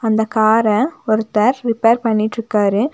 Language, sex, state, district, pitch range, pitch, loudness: Tamil, female, Tamil Nadu, Nilgiris, 215-230 Hz, 220 Hz, -16 LUFS